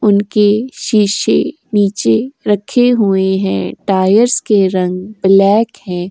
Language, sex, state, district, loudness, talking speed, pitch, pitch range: Hindi, female, Uttar Pradesh, Jyotiba Phule Nagar, -13 LUFS, 110 wpm, 205 Hz, 190-215 Hz